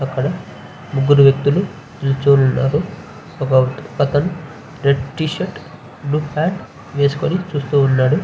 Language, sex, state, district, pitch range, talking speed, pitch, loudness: Telugu, male, Andhra Pradesh, Visakhapatnam, 135-155 Hz, 100 wpm, 145 Hz, -17 LUFS